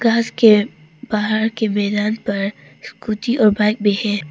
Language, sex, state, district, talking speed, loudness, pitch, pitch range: Hindi, female, Arunachal Pradesh, Papum Pare, 140 wpm, -17 LUFS, 210 Hz, 205-220 Hz